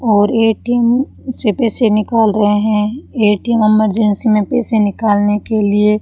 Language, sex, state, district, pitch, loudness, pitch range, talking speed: Hindi, female, Rajasthan, Bikaner, 215 Hz, -14 LUFS, 210-235 Hz, 160 wpm